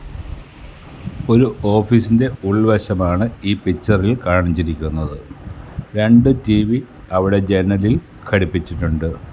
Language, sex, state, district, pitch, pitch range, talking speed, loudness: Malayalam, male, Kerala, Kasaragod, 105 Hz, 90-115 Hz, 75 wpm, -17 LUFS